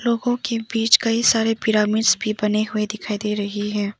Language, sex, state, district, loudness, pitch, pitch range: Hindi, female, Arunachal Pradesh, Papum Pare, -20 LUFS, 215 Hz, 210-225 Hz